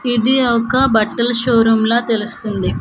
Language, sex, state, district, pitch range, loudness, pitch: Telugu, female, Andhra Pradesh, Manyam, 225-245 Hz, -15 LUFS, 235 Hz